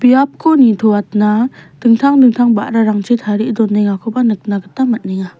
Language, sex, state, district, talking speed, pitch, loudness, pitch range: Garo, female, Meghalaya, West Garo Hills, 110 wpm, 225 Hz, -13 LUFS, 210-245 Hz